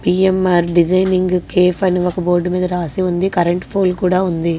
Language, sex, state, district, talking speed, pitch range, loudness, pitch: Telugu, female, Andhra Pradesh, Guntur, 155 wpm, 175-185 Hz, -16 LUFS, 180 Hz